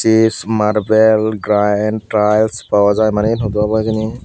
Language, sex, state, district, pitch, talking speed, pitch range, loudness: Chakma, male, Tripura, Dhalai, 110 Hz, 140 wpm, 105-110 Hz, -14 LUFS